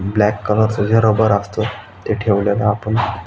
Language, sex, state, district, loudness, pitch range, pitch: Marathi, male, Maharashtra, Aurangabad, -17 LUFS, 100-110 Hz, 105 Hz